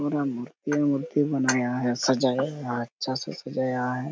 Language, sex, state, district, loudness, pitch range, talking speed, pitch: Hindi, male, Jharkhand, Sahebganj, -26 LUFS, 125-145 Hz, 175 wpm, 130 Hz